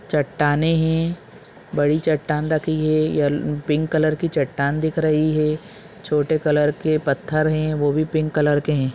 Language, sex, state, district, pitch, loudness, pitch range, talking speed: Hindi, male, Chhattisgarh, Balrampur, 155 Hz, -20 LUFS, 150-160 Hz, 160 wpm